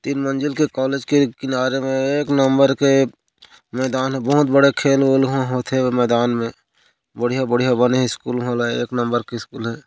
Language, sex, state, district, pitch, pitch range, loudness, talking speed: Chhattisgarhi, male, Chhattisgarh, Korba, 130 Hz, 120-135 Hz, -18 LUFS, 165 wpm